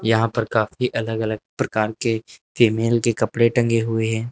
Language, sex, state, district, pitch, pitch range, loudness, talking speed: Hindi, male, Uttar Pradesh, Lucknow, 115 Hz, 110-115 Hz, -21 LUFS, 180 wpm